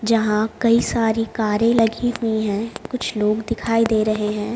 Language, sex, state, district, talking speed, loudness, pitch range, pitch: Hindi, female, Haryana, Jhajjar, 170 wpm, -20 LUFS, 215-230 Hz, 225 Hz